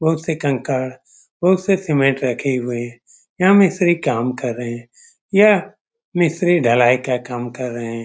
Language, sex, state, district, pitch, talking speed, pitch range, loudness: Hindi, male, Bihar, Saran, 135 Hz, 165 wpm, 120-175 Hz, -18 LUFS